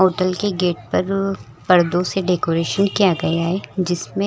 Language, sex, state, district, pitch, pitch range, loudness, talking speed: Hindi, female, Chhattisgarh, Rajnandgaon, 175 Hz, 125-185 Hz, -19 LUFS, 170 wpm